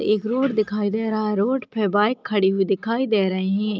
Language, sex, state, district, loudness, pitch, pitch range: Hindi, female, Chhattisgarh, Kabirdham, -22 LUFS, 210 Hz, 205-225 Hz